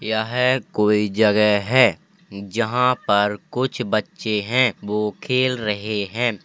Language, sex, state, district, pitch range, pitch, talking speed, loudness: Hindi, male, Uttar Pradesh, Hamirpur, 105-125 Hz, 110 Hz, 120 wpm, -20 LUFS